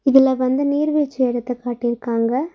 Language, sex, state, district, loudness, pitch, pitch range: Tamil, female, Tamil Nadu, Nilgiris, -19 LUFS, 260 Hz, 240-280 Hz